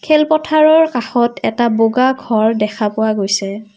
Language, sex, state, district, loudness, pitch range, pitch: Assamese, female, Assam, Kamrup Metropolitan, -14 LUFS, 215-265 Hz, 235 Hz